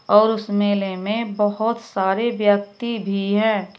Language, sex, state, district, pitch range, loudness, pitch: Hindi, female, Uttar Pradesh, Shamli, 200-220 Hz, -20 LUFS, 205 Hz